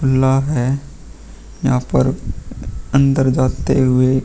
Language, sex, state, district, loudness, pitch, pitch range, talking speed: Hindi, male, Uttar Pradesh, Muzaffarnagar, -16 LUFS, 130 Hz, 130-135 Hz, 115 wpm